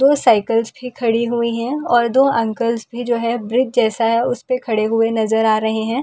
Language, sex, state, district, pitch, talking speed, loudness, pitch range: Hindi, female, Delhi, New Delhi, 235 Hz, 250 wpm, -17 LUFS, 225-245 Hz